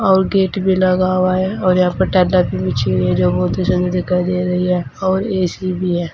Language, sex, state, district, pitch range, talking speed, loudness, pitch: Hindi, female, Uttar Pradesh, Saharanpur, 180-190 Hz, 245 wpm, -16 LUFS, 185 Hz